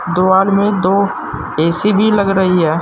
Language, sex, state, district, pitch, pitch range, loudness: Hindi, male, Uttar Pradesh, Saharanpur, 190 Hz, 180-200 Hz, -14 LUFS